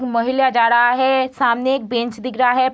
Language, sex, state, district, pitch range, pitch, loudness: Hindi, female, Bihar, Begusarai, 240-260 Hz, 255 Hz, -17 LUFS